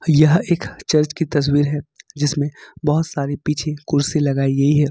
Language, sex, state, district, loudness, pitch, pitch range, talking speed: Hindi, male, Jharkhand, Ranchi, -19 LUFS, 150 Hz, 145-155 Hz, 170 wpm